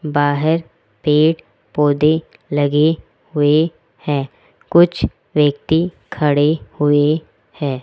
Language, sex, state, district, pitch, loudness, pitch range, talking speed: Hindi, female, Rajasthan, Jaipur, 150 Hz, -17 LUFS, 145-160 Hz, 85 wpm